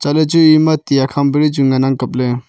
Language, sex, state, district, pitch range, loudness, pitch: Wancho, male, Arunachal Pradesh, Longding, 130-155 Hz, -13 LUFS, 140 Hz